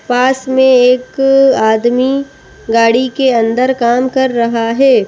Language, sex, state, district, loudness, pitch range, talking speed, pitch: Hindi, female, Madhya Pradesh, Bhopal, -11 LUFS, 235-265 Hz, 130 wpm, 255 Hz